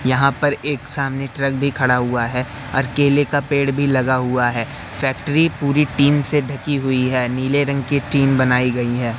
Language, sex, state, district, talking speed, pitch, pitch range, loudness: Hindi, male, Madhya Pradesh, Katni, 200 wpm, 135 Hz, 125-145 Hz, -18 LUFS